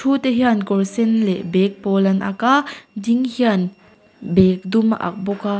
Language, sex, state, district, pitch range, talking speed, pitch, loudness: Mizo, female, Mizoram, Aizawl, 195-235 Hz, 205 wpm, 210 Hz, -18 LUFS